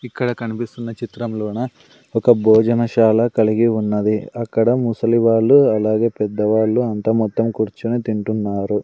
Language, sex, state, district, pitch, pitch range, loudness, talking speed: Telugu, male, Andhra Pradesh, Sri Satya Sai, 115 Hz, 110-120 Hz, -18 LUFS, 110 wpm